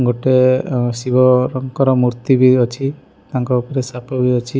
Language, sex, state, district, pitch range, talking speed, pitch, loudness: Odia, male, Odisha, Malkangiri, 125-130 Hz, 145 wpm, 130 Hz, -16 LUFS